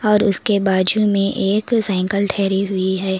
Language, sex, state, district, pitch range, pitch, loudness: Hindi, female, Karnataka, Koppal, 190-210 Hz, 200 Hz, -17 LUFS